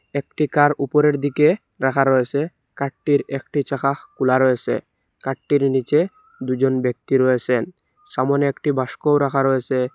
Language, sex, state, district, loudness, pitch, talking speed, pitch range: Bengali, male, Assam, Hailakandi, -20 LUFS, 140 Hz, 125 wpm, 130-145 Hz